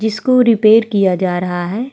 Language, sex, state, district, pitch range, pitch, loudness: Hindi, female, Uttar Pradesh, Jalaun, 185-230 Hz, 215 Hz, -13 LUFS